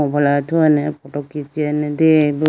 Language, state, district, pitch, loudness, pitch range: Idu Mishmi, Arunachal Pradesh, Lower Dibang Valley, 150 Hz, -17 LUFS, 145-155 Hz